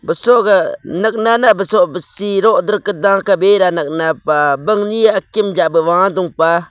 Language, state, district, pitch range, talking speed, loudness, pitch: Nyishi, Arunachal Pradesh, Papum Pare, 175-215 Hz, 115 wpm, -13 LUFS, 200 Hz